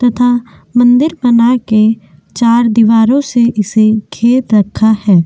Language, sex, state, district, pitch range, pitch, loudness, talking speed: Hindi, female, Uttar Pradesh, Jyotiba Phule Nagar, 215-245 Hz, 230 Hz, -10 LUFS, 125 wpm